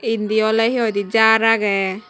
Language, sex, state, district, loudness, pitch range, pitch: Chakma, female, Tripura, West Tripura, -17 LUFS, 210-225 Hz, 220 Hz